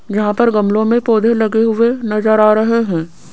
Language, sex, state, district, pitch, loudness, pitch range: Hindi, female, Rajasthan, Jaipur, 220 Hz, -14 LUFS, 210-230 Hz